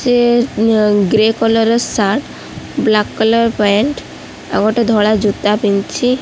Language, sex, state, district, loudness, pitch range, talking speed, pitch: Odia, female, Odisha, Khordha, -14 LUFS, 210-235 Hz, 135 wpm, 220 Hz